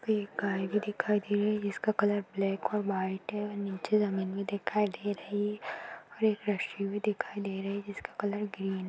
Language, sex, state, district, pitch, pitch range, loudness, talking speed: Hindi, female, Chhattisgarh, Rajnandgaon, 205 Hz, 195-210 Hz, -32 LUFS, 215 wpm